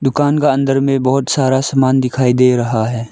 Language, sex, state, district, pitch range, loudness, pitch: Hindi, male, Arunachal Pradesh, Lower Dibang Valley, 125-135 Hz, -14 LUFS, 130 Hz